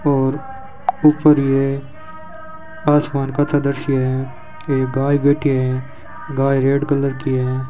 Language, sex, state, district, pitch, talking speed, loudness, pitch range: Hindi, male, Rajasthan, Bikaner, 140 Hz, 130 wpm, -18 LUFS, 135-155 Hz